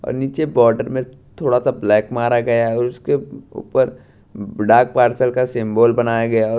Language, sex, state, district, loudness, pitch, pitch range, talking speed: Hindi, male, Bihar, Katihar, -17 LUFS, 120 Hz, 115-125 Hz, 180 wpm